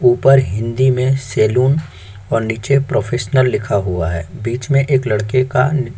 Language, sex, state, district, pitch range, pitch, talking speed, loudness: Hindi, male, Chhattisgarh, Korba, 110-135 Hz, 125 Hz, 160 wpm, -16 LUFS